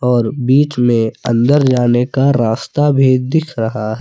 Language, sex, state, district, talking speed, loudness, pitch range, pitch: Hindi, male, Jharkhand, Palamu, 150 wpm, -14 LUFS, 115-135 Hz, 125 Hz